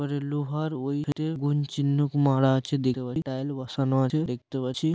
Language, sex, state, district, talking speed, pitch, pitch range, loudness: Bengali, male, West Bengal, Dakshin Dinajpur, 170 wpm, 140 Hz, 130-145 Hz, -27 LUFS